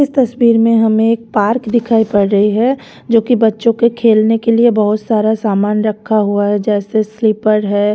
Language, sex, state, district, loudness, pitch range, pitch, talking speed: Hindi, female, Delhi, New Delhi, -13 LUFS, 210-230 Hz, 220 Hz, 195 wpm